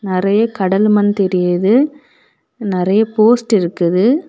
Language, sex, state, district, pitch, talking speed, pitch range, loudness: Tamil, female, Tamil Nadu, Kanyakumari, 205 Hz, 100 wpm, 185-225 Hz, -14 LUFS